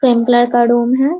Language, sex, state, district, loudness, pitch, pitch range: Hindi, female, Bihar, Muzaffarpur, -13 LUFS, 245 Hz, 240-260 Hz